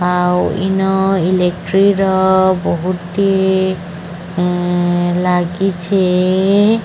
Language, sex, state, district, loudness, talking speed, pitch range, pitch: Odia, male, Odisha, Sambalpur, -14 LUFS, 55 wpm, 180-190 Hz, 185 Hz